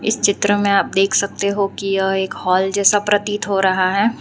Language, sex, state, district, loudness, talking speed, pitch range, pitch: Hindi, female, Gujarat, Valsad, -17 LUFS, 230 wpm, 195-205 Hz, 200 Hz